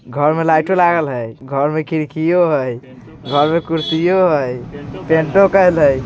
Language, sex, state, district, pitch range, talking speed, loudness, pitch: Bajjika, male, Bihar, Vaishali, 140-165 Hz, 160 wpm, -15 LUFS, 155 Hz